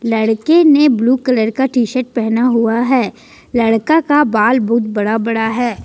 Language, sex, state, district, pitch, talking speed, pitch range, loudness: Hindi, female, Jharkhand, Ranchi, 240 Hz, 165 wpm, 225-260 Hz, -14 LUFS